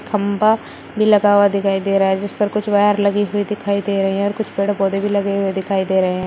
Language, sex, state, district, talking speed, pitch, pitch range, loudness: Hindi, female, Uttar Pradesh, Shamli, 280 wpm, 200 Hz, 195-205 Hz, -17 LUFS